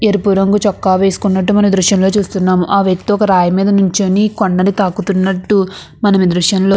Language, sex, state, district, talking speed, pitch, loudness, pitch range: Telugu, female, Andhra Pradesh, Anantapur, 150 wpm, 195 Hz, -13 LUFS, 190-205 Hz